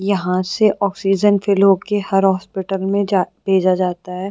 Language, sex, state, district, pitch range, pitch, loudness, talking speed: Hindi, female, Uttar Pradesh, Gorakhpur, 185-200 Hz, 195 Hz, -17 LUFS, 180 wpm